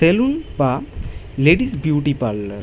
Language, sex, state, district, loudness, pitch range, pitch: Bengali, male, West Bengal, Malda, -18 LUFS, 105-175 Hz, 145 Hz